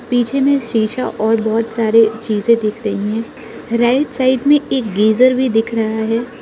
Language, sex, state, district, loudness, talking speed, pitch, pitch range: Hindi, female, Arunachal Pradesh, Lower Dibang Valley, -15 LUFS, 175 wpm, 230 Hz, 220-255 Hz